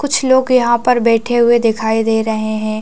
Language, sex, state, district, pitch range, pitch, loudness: Hindi, female, Chhattisgarh, Raigarh, 220-250 Hz, 235 Hz, -14 LUFS